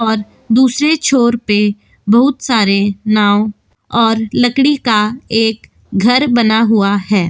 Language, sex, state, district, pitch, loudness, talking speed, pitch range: Hindi, female, Goa, North and South Goa, 225 Hz, -13 LUFS, 125 wpm, 210-245 Hz